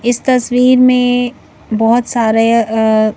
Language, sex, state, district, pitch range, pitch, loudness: Hindi, female, Madhya Pradesh, Bhopal, 225-250 Hz, 240 Hz, -12 LUFS